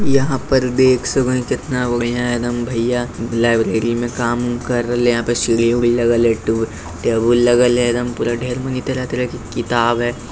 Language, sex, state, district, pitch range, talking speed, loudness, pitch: Maithili, male, Bihar, Lakhisarai, 120-125 Hz, 170 wpm, -17 LUFS, 120 Hz